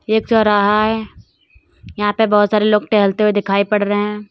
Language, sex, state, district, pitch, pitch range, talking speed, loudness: Hindi, female, Uttar Pradesh, Lalitpur, 210 Hz, 205-215 Hz, 195 wpm, -15 LUFS